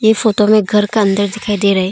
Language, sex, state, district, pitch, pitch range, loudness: Hindi, female, Arunachal Pradesh, Longding, 210 Hz, 200-215 Hz, -13 LUFS